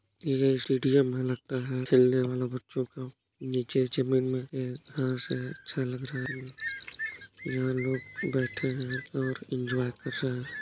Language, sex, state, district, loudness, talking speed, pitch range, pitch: Hindi, female, Chhattisgarh, Balrampur, -30 LUFS, 165 wpm, 125-135 Hz, 130 Hz